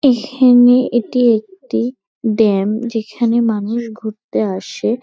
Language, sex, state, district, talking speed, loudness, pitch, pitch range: Bengali, female, West Bengal, North 24 Parganas, 95 wpm, -15 LUFS, 235 Hz, 220-245 Hz